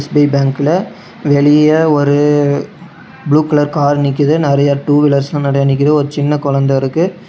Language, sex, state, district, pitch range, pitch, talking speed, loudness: Tamil, male, Tamil Nadu, Namakkal, 140-150 Hz, 145 Hz, 140 wpm, -12 LUFS